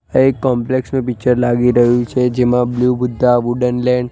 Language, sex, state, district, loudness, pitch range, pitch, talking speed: Gujarati, male, Gujarat, Gandhinagar, -15 LUFS, 120-125 Hz, 125 Hz, 190 wpm